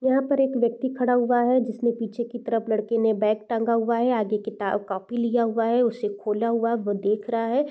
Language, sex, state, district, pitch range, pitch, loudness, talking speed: Hindi, female, Bihar, East Champaran, 220-245 Hz, 230 Hz, -24 LUFS, 225 wpm